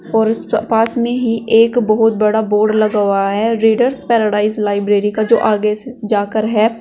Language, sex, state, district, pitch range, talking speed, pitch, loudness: Hindi, female, Uttar Pradesh, Saharanpur, 210-230 Hz, 175 wpm, 220 Hz, -14 LUFS